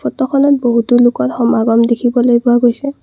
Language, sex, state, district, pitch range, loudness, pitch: Assamese, female, Assam, Kamrup Metropolitan, 235-250 Hz, -12 LUFS, 240 Hz